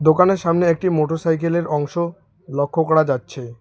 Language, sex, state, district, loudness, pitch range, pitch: Bengali, male, West Bengal, Alipurduar, -19 LUFS, 145-170 Hz, 160 Hz